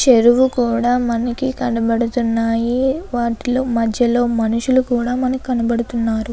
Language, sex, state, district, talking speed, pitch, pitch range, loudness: Telugu, female, Andhra Pradesh, Anantapur, 95 wpm, 240 Hz, 230-250 Hz, -17 LUFS